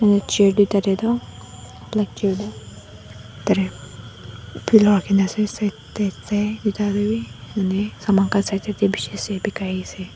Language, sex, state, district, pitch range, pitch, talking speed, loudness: Nagamese, female, Nagaland, Dimapur, 130-210 Hz, 200 Hz, 140 wpm, -21 LUFS